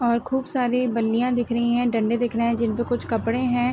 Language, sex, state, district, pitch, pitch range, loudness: Hindi, female, Uttar Pradesh, Varanasi, 240 Hz, 230-245 Hz, -23 LUFS